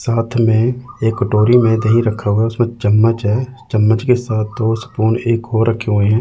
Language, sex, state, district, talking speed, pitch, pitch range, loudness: Hindi, male, Chandigarh, Chandigarh, 200 wpm, 115 Hz, 110-120 Hz, -15 LUFS